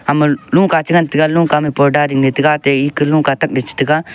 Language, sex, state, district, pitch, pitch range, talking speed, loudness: Wancho, male, Arunachal Pradesh, Longding, 150 Hz, 140-155 Hz, 215 wpm, -13 LUFS